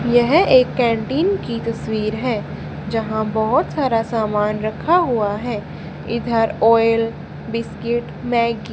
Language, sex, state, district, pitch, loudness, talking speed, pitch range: Hindi, female, Haryana, Charkhi Dadri, 230 Hz, -19 LUFS, 125 wpm, 220-240 Hz